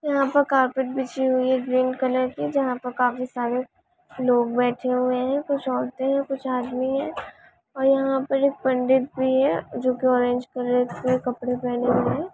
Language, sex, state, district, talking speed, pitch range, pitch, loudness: Hindi, female, Chhattisgarh, Bastar, 185 wpm, 250-270 Hz, 255 Hz, -23 LUFS